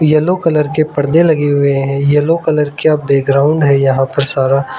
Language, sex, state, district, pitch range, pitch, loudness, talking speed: Hindi, male, Arunachal Pradesh, Lower Dibang Valley, 140-155 Hz, 145 Hz, -12 LUFS, 190 wpm